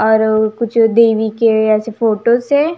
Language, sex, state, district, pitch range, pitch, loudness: Hindi, female, Punjab, Kapurthala, 220-235 Hz, 225 Hz, -13 LUFS